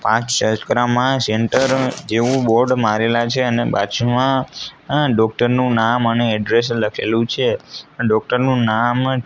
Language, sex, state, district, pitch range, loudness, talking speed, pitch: Gujarati, male, Gujarat, Gandhinagar, 110-125 Hz, -17 LUFS, 115 wpm, 120 Hz